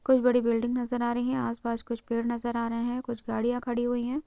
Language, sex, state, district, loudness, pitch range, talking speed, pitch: Hindi, female, West Bengal, North 24 Parganas, -29 LUFS, 235-245 Hz, 265 wpm, 240 Hz